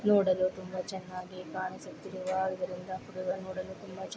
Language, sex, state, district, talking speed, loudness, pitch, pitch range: Kannada, female, Karnataka, Mysore, 115 wpm, -34 LUFS, 185 Hz, 185-190 Hz